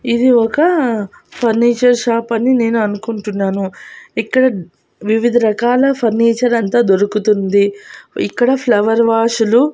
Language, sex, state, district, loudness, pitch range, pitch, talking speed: Telugu, female, Andhra Pradesh, Annamaya, -14 LUFS, 210-245 Hz, 230 Hz, 110 wpm